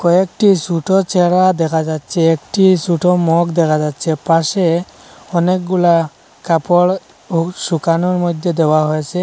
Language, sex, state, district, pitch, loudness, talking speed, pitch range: Bengali, male, Assam, Hailakandi, 170 Hz, -15 LUFS, 110 wpm, 165-180 Hz